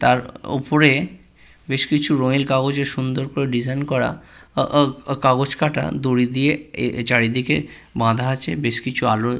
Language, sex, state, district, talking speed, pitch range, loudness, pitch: Bengali, male, West Bengal, Purulia, 140 wpm, 125-140 Hz, -20 LUFS, 130 Hz